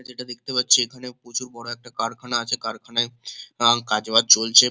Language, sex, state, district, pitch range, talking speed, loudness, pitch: Bengali, male, West Bengal, Kolkata, 115-125 Hz, 165 wpm, -20 LUFS, 120 Hz